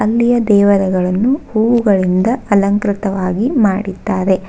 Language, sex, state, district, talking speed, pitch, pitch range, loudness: Kannada, female, Karnataka, Bangalore, 65 wpm, 200 Hz, 190-230 Hz, -14 LUFS